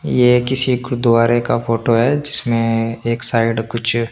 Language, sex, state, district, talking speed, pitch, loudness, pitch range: Hindi, male, Chandigarh, Chandigarh, 160 wpm, 115 Hz, -15 LUFS, 115-125 Hz